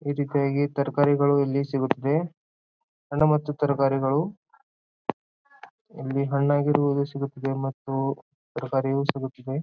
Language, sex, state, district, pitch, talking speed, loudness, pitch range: Kannada, male, Karnataka, Bijapur, 140 Hz, 80 wpm, -25 LUFS, 135-145 Hz